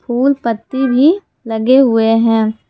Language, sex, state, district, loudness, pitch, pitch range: Hindi, female, Jharkhand, Palamu, -13 LUFS, 240 Hz, 225-265 Hz